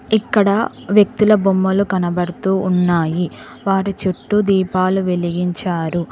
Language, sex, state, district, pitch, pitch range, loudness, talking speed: Telugu, female, Telangana, Mahabubabad, 190 Hz, 180-200 Hz, -17 LUFS, 90 wpm